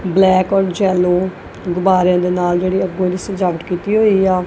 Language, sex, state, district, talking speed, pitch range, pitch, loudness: Punjabi, female, Punjab, Kapurthala, 175 wpm, 180-190 Hz, 185 Hz, -15 LUFS